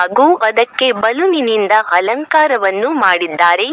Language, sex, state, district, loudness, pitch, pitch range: Kannada, female, Karnataka, Koppal, -13 LUFS, 220 Hz, 180-260 Hz